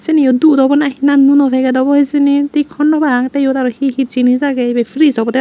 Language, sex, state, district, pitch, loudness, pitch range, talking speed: Chakma, female, Tripura, Unakoti, 275 Hz, -12 LUFS, 260-285 Hz, 235 wpm